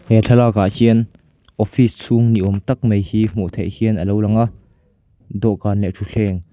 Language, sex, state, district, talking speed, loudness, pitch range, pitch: Mizo, male, Mizoram, Aizawl, 175 wpm, -17 LUFS, 100-115 Hz, 105 Hz